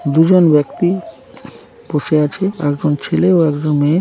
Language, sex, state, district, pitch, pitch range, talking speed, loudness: Bengali, male, West Bengal, Dakshin Dinajpur, 155 Hz, 145-175 Hz, 150 wpm, -15 LUFS